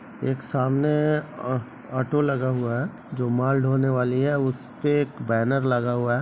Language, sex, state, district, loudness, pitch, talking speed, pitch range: Hindi, male, Bihar, Begusarai, -24 LUFS, 130 Hz, 175 wpm, 125-145 Hz